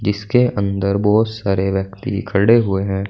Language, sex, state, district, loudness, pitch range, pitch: Hindi, male, Uttar Pradesh, Saharanpur, -17 LUFS, 100-110 Hz, 100 Hz